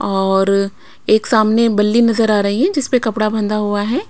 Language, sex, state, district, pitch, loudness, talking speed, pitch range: Hindi, female, Bihar, Patna, 215 Hz, -15 LUFS, 205 wpm, 205-230 Hz